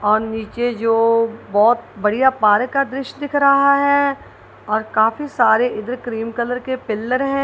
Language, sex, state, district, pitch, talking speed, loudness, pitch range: Hindi, female, Punjab, Kapurthala, 235 Hz, 160 wpm, -18 LUFS, 220-275 Hz